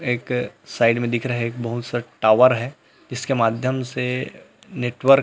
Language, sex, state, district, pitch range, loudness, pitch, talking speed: Hindi, male, Chhattisgarh, Rajnandgaon, 120-125 Hz, -21 LUFS, 125 Hz, 170 wpm